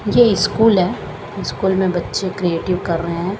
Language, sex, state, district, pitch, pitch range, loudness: Hindi, female, Chandigarh, Chandigarh, 190 Hz, 175-205 Hz, -18 LUFS